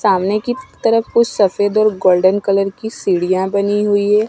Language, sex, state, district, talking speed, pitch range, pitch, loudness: Hindi, female, Punjab, Kapurthala, 180 wpm, 195-220 Hz, 205 Hz, -15 LUFS